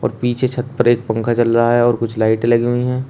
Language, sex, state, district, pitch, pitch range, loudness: Hindi, male, Uttar Pradesh, Shamli, 120 Hz, 115-120 Hz, -16 LUFS